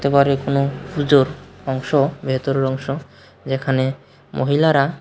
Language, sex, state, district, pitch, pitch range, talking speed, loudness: Bengali, male, Tripura, West Tripura, 135 Hz, 135-140 Hz, 95 wpm, -19 LUFS